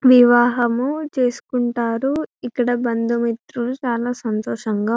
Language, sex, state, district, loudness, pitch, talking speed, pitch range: Telugu, female, Telangana, Karimnagar, -20 LUFS, 245 Hz, 75 wpm, 235-255 Hz